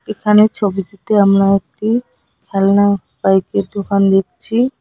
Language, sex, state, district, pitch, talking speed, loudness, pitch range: Bengali, female, West Bengal, Cooch Behar, 200 Hz, 100 wpm, -15 LUFS, 195-215 Hz